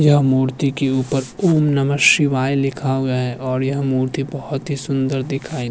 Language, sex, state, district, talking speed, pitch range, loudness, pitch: Hindi, male, Uttarakhand, Tehri Garhwal, 190 wpm, 130-140 Hz, -18 LUFS, 135 Hz